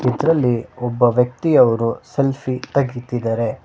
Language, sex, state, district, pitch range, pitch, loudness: Kannada, male, Karnataka, Bangalore, 120-135 Hz, 125 Hz, -18 LUFS